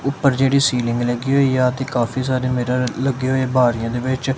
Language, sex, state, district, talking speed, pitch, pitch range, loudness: Punjabi, male, Punjab, Kapurthala, 205 wpm, 130 Hz, 125-135 Hz, -19 LUFS